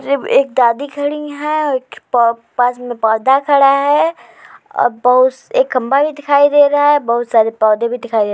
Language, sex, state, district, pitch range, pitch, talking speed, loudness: Hindi, female, Uttar Pradesh, Jalaun, 235-290 Hz, 265 Hz, 210 wpm, -14 LUFS